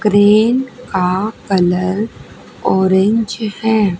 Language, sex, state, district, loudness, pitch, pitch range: Hindi, female, Haryana, Charkhi Dadri, -15 LUFS, 205 Hz, 190-225 Hz